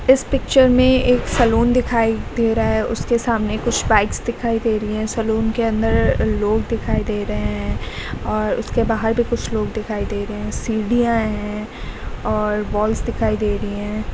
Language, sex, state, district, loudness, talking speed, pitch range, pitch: Hindi, female, Delhi, New Delhi, -19 LUFS, 180 wpm, 210-235 Hz, 220 Hz